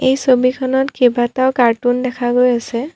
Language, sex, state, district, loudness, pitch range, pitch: Assamese, female, Assam, Kamrup Metropolitan, -15 LUFS, 245-260 Hz, 250 Hz